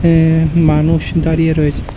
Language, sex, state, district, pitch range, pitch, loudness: Bengali, male, Tripura, West Tripura, 160-165 Hz, 160 Hz, -13 LUFS